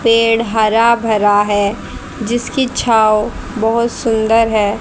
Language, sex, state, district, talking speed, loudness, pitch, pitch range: Hindi, female, Haryana, Rohtak, 110 wpm, -14 LUFS, 225 Hz, 215-230 Hz